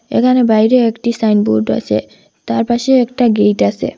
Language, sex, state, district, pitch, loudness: Bengali, female, Assam, Hailakandi, 220 Hz, -13 LUFS